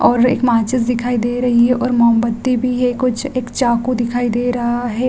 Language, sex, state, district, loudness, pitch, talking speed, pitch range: Hindi, female, Bihar, Gaya, -16 LUFS, 245 Hz, 225 wpm, 235-250 Hz